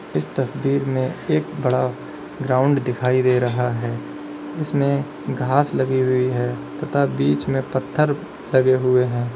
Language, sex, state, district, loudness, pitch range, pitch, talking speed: Hindi, male, Uttar Pradesh, Lalitpur, -21 LUFS, 125-140 Hz, 130 Hz, 140 wpm